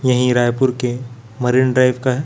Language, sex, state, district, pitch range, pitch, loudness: Hindi, male, Chhattisgarh, Raipur, 125-130 Hz, 125 Hz, -16 LUFS